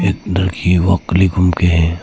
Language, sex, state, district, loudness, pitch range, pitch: Hindi, male, Arunachal Pradesh, Papum Pare, -15 LUFS, 85-95 Hz, 90 Hz